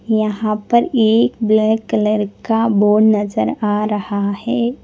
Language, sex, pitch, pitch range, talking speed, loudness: Hindi, female, 215 Hz, 210-225 Hz, 135 wpm, -16 LUFS